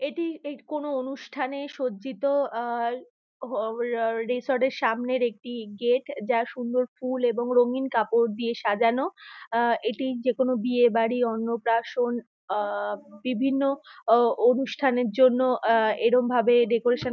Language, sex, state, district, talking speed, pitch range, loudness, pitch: Bengali, female, West Bengal, Purulia, 125 wpm, 235-260 Hz, -25 LUFS, 245 Hz